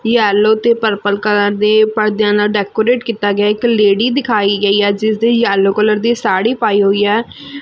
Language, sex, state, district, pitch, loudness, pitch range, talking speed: Punjabi, female, Punjab, Fazilka, 215 Hz, -13 LUFS, 205-230 Hz, 180 wpm